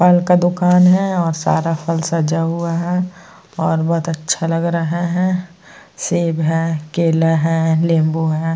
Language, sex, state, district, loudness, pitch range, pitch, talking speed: Hindi, female, Uttar Pradesh, Jyotiba Phule Nagar, -17 LUFS, 165-175 Hz, 165 Hz, 155 wpm